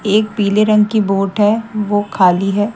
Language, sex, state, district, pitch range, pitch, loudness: Hindi, female, Haryana, Jhajjar, 200-215 Hz, 205 Hz, -14 LUFS